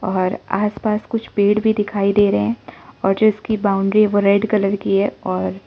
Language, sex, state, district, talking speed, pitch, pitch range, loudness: Hindi, male, Arunachal Pradesh, Lower Dibang Valley, 200 wpm, 200 Hz, 195-210 Hz, -18 LUFS